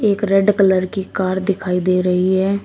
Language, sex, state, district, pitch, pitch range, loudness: Hindi, female, Uttar Pradesh, Shamli, 190 Hz, 185-200 Hz, -17 LUFS